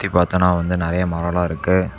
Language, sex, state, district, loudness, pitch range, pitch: Tamil, male, Tamil Nadu, Namakkal, -19 LUFS, 85-90 Hz, 90 Hz